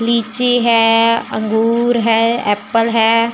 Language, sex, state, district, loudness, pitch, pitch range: Hindi, female, Chandigarh, Chandigarh, -13 LUFS, 230 Hz, 225-235 Hz